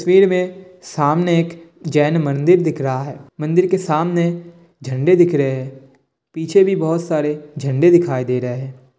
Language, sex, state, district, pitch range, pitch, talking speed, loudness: Hindi, male, Bihar, Kishanganj, 140-175 Hz, 160 Hz, 175 wpm, -17 LUFS